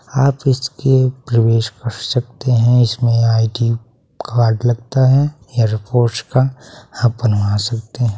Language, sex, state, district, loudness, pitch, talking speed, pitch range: Hindi, male, Bihar, Saharsa, -16 LUFS, 120 Hz, 130 wpm, 115-130 Hz